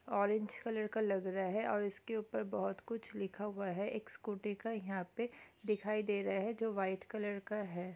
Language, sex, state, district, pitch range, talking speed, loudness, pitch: Hindi, female, Goa, North and South Goa, 195-220 Hz, 210 wpm, -40 LUFS, 210 Hz